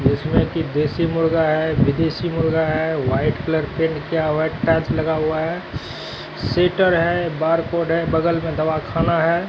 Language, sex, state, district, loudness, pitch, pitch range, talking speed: Hindi, male, Bihar, Katihar, -20 LUFS, 160 Hz, 155-165 Hz, 165 wpm